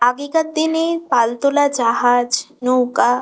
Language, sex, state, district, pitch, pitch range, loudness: Bengali, female, West Bengal, Kolkata, 255 Hz, 245-305 Hz, -17 LUFS